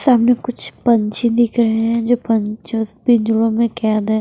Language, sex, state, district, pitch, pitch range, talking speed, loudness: Hindi, female, Bihar, West Champaran, 230 Hz, 220-240 Hz, 170 wpm, -16 LUFS